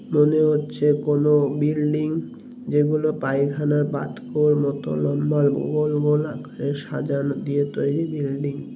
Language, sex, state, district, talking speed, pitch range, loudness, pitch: Bengali, male, West Bengal, North 24 Parganas, 125 wpm, 140-150 Hz, -22 LUFS, 150 Hz